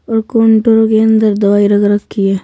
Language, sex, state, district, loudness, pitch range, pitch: Hindi, female, Uttar Pradesh, Saharanpur, -11 LUFS, 205-220 Hz, 215 Hz